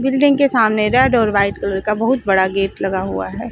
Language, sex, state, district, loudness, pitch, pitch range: Hindi, female, Chandigarh, Chandigarh, -16 LUFS, 210 Hz, 195-255 Hz